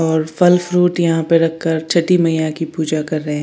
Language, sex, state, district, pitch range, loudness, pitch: Hindi, female, Chandigarh, Chandigarh, 160-170 Hz, -16 LUFS, 165 Hz